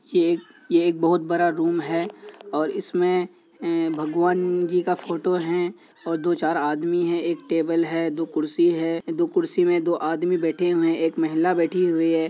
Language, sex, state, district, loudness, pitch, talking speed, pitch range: Hindi, male, Bihar, Kishanganj, -23 LUFS, 170 Hz, 195 wpm, 165-180 Hz